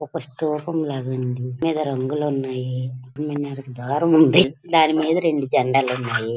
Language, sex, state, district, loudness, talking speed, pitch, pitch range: Telugu, female, Andhra Pradesh, Srikakulam, -21 LUFS, 170 wpm, 140 Hz, 130-155 Hz